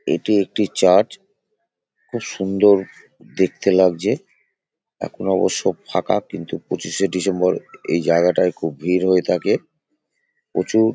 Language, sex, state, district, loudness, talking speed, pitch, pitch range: Bengali, male, West Bengal, Paschim Medinipur, -19 LUFS, 120 wpm, 95 Hz, 90-110 Hz